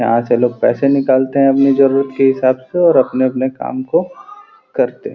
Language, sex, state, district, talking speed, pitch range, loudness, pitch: Hindi, male, Uttar Pradesh, Gorakhpur, 200 wpm, 130-175 Hz, -14 LUFS, 135 Hz